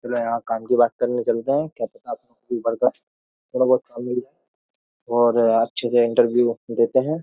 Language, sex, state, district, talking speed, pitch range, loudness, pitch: Hindi, male, Uttar Pradesh, Jyotiba Phule Nagar, 155 wpm, 115-125 Hz, -21 LUFS, 120 Hz